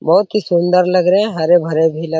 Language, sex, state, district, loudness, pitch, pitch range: Hindi, male, Bihar, Araria, -14 LUFS, 175 Hz, 160-185 Hz